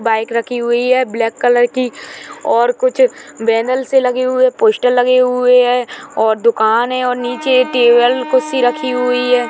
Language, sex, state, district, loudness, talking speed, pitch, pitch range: Hindi, female, Chhattisgarh, Kabirdham, -14 LUFS, 165 wpm, 250 Hz, 240-255 Hz